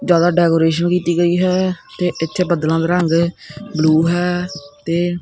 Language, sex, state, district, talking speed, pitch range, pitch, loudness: Punjabi, male, Punjab, Kapurthala, 150 wpm, 165-180 Hz, 175 Hz, -16 LUFS